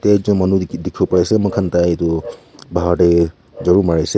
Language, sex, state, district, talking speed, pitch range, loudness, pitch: Nagamese, male, Nagaland, Kohima, 200 wpm, 85-100 Hz, -16 LUFS, 90 Hz